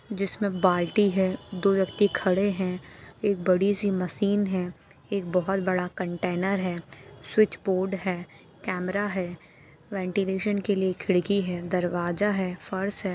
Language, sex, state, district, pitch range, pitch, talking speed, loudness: Hindi, female, Chhattisgarh, Jashpur, 180-200 Hz, 190 Hz, 140 wpm, -27 LUFS